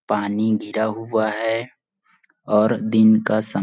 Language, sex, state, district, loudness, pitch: Hindi, male, Chhattisgarh, Bilaspur, -20 LUFS, 110 Hz